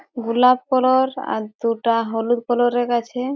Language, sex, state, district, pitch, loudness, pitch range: Bengali, female, West Bengal, Jhargram, 240 Hz, -19 LUFS, 230-255 Hz